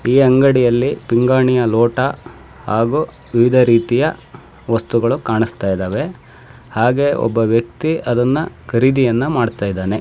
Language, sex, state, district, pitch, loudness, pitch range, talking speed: Kannada, male, Karnataka, Shimoga, 120 Hz, -16 LUFS, 115-130 Hz, 85 wpm